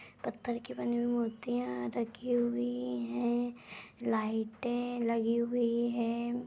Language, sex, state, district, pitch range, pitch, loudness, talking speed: Hindi, female, Uttar Pradesh, Etah, 225-240 Hz, 235 Hz, -34 LUFS, 130 wpm